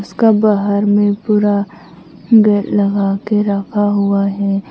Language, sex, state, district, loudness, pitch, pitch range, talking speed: Hindi, female, Nagaland, Kohima, -14 LUFS, 205 Hz, 200-210 Hz, 125 wpm